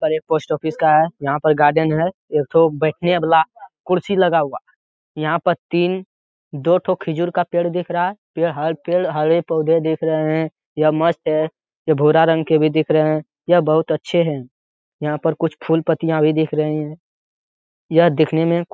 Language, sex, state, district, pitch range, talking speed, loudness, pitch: Hindi, male, Bihar, Jamui, 155-170 Hz, 195 wpm, -18 LUFS, 160 Hz